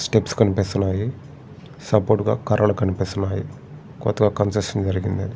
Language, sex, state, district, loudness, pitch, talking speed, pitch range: Telugu, male, Andhra Pradesh, Srikakulam, -21 LUFS, 105 Hz, 110 wpm, 100-130 Hz